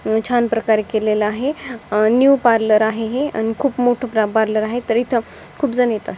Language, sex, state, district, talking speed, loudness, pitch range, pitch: Marathi, female, Maharashtra, Dhule, 175 wpm, -17 LUFS, 220-245 Hz, 230 Hz